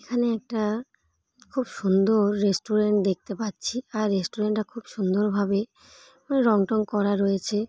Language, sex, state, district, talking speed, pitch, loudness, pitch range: Bengali, female, West Bengal, North 24 Parganas, 140 wpm, 210 Hz, -25 LUFS, 200-230 Hz